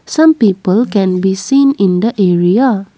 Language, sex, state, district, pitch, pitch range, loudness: English, female, Assam, Kamrup Metropolitan, 200 Hz, 190-250 Hz, -11 LUFS